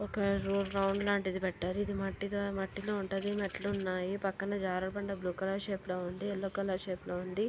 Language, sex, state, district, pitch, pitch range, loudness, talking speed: Telugu, female, Andhra Pradesh, Guntur, 195 Hz, 190-200 Hz, -35 LUFS, 170 wpm